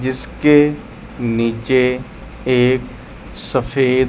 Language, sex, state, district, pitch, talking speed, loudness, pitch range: Hindi, male, Chandigarh, Chandigarh, 125 Hz, 60 wpm, -16 LUFS, 120-130 Hz